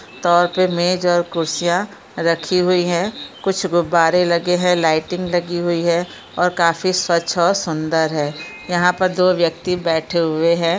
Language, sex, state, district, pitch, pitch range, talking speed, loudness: Hindi, female, Chhattisgarh, Bilaspur, 175 Hz, 170-180 Hz, 150 wpm, -18 LUFS